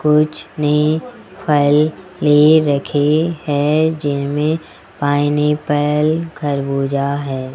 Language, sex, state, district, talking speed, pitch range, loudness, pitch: Hindi, male, Rajasthan, Jaipur, 80 wpm, 145-155 Hz, -16 LUFS, 150 Hz